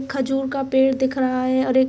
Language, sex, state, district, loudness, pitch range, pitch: Hindi, female, Jharkhand, Sahebganj, -20 LUFS, 260-270 Hz, 265 Hz